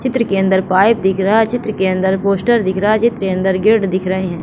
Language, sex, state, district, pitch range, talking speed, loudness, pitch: Hindi, female, Madhya Pradesh, Katni, 190-220 Hz, 285 wpm, -15 LUFS, 195 Hz